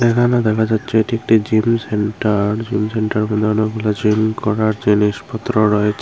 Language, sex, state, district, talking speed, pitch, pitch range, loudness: Bengali, female, Tripura, Unakoti, 170 wpm, 110 Hz, 105-110 Hz, -17 LUFS